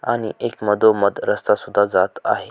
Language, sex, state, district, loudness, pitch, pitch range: Marathi, male, Maharashtra, Sindhudurg, -19 LUFS, 110 Hz, 100-110 Hz